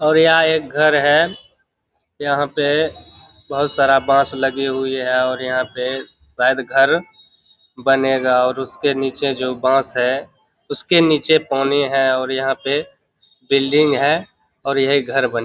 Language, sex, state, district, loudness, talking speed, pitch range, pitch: Hindi, male, Bihar, Begusarai, -17 LUFS, 150 wpm, 130-145 Hz, 135 Hz